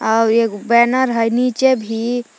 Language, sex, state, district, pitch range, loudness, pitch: Magahi, female, Jharkhand, Palamu, 225-250 Hz, -15 LUFS, 235 Hz